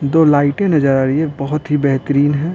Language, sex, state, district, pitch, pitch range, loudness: Hindi, male, Bihar, Patna, 145 Hz, 140-155 Hz, -15 LUFS